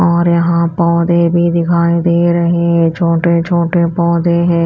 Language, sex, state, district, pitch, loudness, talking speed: Hindi, female, Chhattisgarh, Raipur, 170 Hz, -12 LUFS, 155 wpm